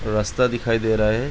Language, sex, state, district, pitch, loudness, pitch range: Hindi, male, Uttar Pradesh, Budaun, 115 Hz, -21 LUFS, 110-120 Hz